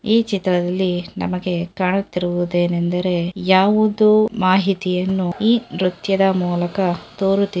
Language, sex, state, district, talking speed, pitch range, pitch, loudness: Kannada, female, Karnataka, Dharwad, 80 wpm, 180-195 Hz, 185 Hz, -18 LUFS